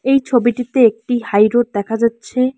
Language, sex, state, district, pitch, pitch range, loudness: Bengali, female, West Bengal, Alipurduar, 240 Hz, 225-250 Hz, -15 LUFS